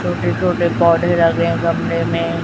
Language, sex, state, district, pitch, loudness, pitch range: Hindi, female, Chhattisgarh, Raipur, 170 Hz, -16 LUFS, 115-170 Hz